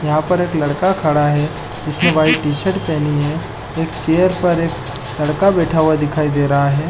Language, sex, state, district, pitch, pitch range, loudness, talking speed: Hindi, male, Chhattisgarh, Balrampur, 150 Hz, 145-165 Hz, -16 LUFS, 190 wpm